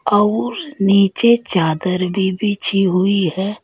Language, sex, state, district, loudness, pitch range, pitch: Hindi, female, Uttar Pradesh, Saharanpur, -16 LUFS, 185-210 Hz, 195 Hz